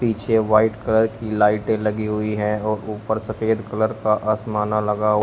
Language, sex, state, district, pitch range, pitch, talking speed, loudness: Hindi, male, Uttar Pradesh, Shamli, 105-110 Hz, 110 Hz, 170 wpm, -21 LUFS